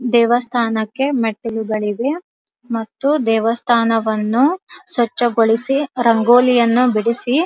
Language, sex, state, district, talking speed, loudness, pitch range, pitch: Kannada, female, Karnataka, Dharwad, 65 wpm, -16 LUFS, 225-260 Hz, 235 Hz